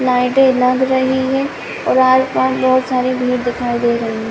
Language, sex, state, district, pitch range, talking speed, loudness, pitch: Hindi, female, Chhattisgarh, Bilaspur, 250-260 Hz, 195 wpm, -15 LUFS, 255 Hz